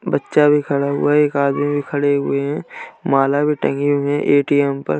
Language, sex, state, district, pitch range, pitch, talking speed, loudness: Hindi, male, Uttar Pradesh, Jalaun, 140-145 Hz, 145 Hz, 215 wpm, -17 LUFS